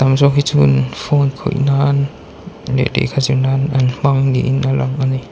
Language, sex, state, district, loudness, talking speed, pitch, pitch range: Mizo, male, Mizoram, Aizawl, -15 LUFS, 135 wpm, 135 Hz, 130-140 Hz